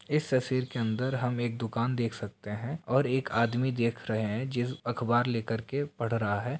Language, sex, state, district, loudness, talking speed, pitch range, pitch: Hindi, male, Bihar, Bhagalpur, -30 LUFS, 210 wpm, 115-130 Hz, 120 Hz